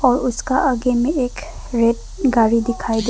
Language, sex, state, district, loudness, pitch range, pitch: Hindi, female, Arunachal Pradesh, Papum Pare, -18 LUFS, 230-260 Hz, 245 Hz